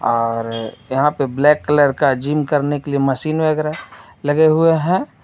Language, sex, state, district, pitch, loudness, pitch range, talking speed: Hindi, male, Jharkhand, Ranchi, 145 Hz, -17 LUFS, 135-155 Hz, 170 wpm